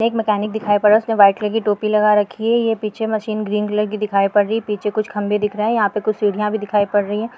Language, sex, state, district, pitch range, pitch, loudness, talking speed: Hindi, female, Maharashtra, Chandrapur, 210-220 Hz, 210 Hz, -18 LUFS, 310 wpm